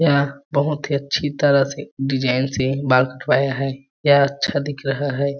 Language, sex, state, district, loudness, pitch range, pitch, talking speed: Hindi, male, Chhattisgarh, Balrampur, -20 LUFS, 135-145 Hz, 140 Hz, 180 wpm